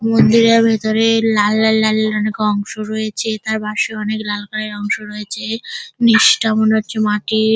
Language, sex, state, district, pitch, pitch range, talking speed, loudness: Bengali, female, West Bengal, Dakshin Dinajpur, 220 Hz, 215-225 Hz, 165 wpm, -16 LUFS